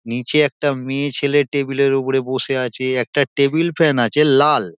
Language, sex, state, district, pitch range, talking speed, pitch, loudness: Bengali, male, West Bengal, Dakshin Dinajpur, 130-145 Hz, 165 wpm, 140 Hz, -17 LUFS